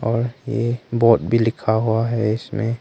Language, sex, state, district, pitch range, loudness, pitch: Hindi, male, Arunachal Pradesh, Longding, 115-120 Hz, -20 LUFS, 115 Hz